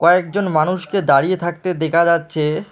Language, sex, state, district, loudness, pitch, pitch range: Bengali, male, West Bengal, Alipurduar, -17 LUFS, 175 Hz, 160-185 Hz